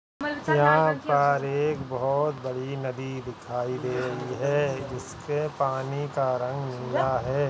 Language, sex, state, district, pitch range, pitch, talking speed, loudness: Hindi, male, Uttarakhand, Tehri Garhwal, 130-145 Hz, 135 Hz, 130 wpm, -27 LUFS